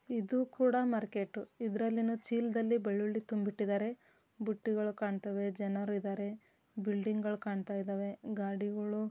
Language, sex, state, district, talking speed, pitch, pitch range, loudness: Kannada, female, Karnataka, Dharwad, 110 wpm, 210 Hz, 205-230 Hz, -36 LUFS